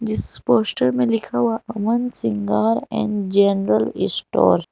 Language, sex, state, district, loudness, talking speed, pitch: Hindi, female, Jharkhand, Garhwa, -19 LUFS, 140 wpm, 200 Hz